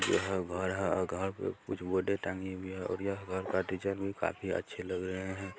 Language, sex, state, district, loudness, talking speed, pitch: Hindi, male, Bihar, Sitamarhi, -35 LUFS, 225 wpm, 95 Hz